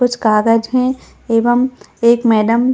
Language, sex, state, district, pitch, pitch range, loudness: Hindi, female, Chhattisgarh, Balrampur, 235 Hz, 230-250 Hz, -14 LUFS